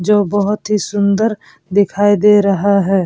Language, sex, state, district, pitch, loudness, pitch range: Hindi, female, Bihar, Vaishali, 205 Hz, -14 LUFS, 200-210 Hz